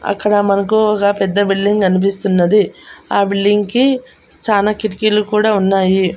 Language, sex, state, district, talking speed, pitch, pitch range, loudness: Telugu, female, Andhra Pradesh, Annamaya, 125 wpm, 205 Hz, 195-210 Hz, -14 LUFS